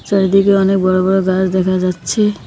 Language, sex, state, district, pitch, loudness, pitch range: Bengali, female, West Bengal, Cooch Behar, 190 Hz, -14 LUFS, 185-195 Hz